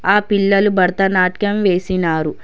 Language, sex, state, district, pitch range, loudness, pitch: Telugu, female, Telangana, Hyderabad, 185-205 Hz, -15 LUFS, 195 Hz